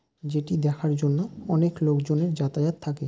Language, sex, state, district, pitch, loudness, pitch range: Bengali, male, West Bengal, Jalpaiguri, 150 Hz, -25 LUFS, 150-165 Hz